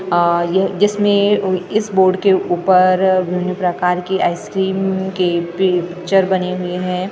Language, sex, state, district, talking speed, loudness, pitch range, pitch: Hindi, female, Maharashtra, Gondia, 160 wpm, -16 LUFS, 180-190 Hz, 185 Hz